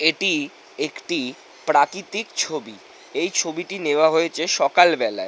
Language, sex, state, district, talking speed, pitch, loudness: Bengali, male, West Bengal, North 24 Parganas, 100 wpm, 185 Hz, -21 LUFS